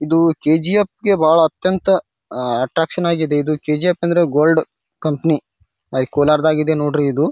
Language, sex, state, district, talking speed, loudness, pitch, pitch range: Kannada, male, Karnataka, Bijapur, 155 wpm, -17 LUFS, 155 Hz, 150-170 Hz